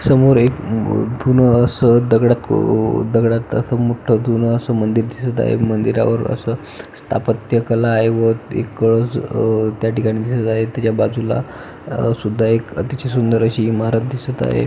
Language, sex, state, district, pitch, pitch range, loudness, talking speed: Marathi, male, Maharashtra, Pune, 115 Hz, 110-120 Hz, -17 LUFS, 160 wpm